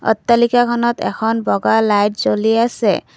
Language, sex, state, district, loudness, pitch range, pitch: Assamese, female, Assam, Kamrup Metropolitan, -15 LUFS, 220-235 Hz, 230 Hz